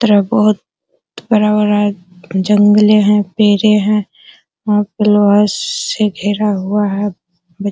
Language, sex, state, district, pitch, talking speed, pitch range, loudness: Hindi, female, Bihar, Araria, 210 Hz, 130 wpm, 205-210 Hz, -13 LUFS